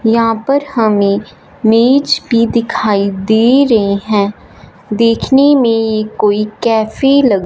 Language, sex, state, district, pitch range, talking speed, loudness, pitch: Hindi, female, Punjab, Fazilka, 210-235 Hz, 120 wpm, -12 LUFS, 225 Hz